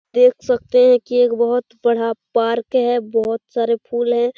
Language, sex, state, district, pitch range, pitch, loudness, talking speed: Hindi, female, Bihar, Saran, 230-250 Hz, 240 Hz, -17 LUFS, 180 wpm